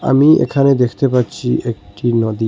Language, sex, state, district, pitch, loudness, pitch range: Bengali, male, Assam, Hailakandi, 120 Hz, -15 LUFS, 110-135 Hz